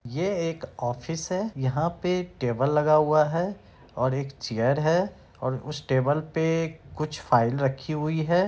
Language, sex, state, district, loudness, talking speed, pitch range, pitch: Hindi, male, Bihar, Samastipur, -26 LUFS, 170 wpm, 130-165 Hz, 150 Hz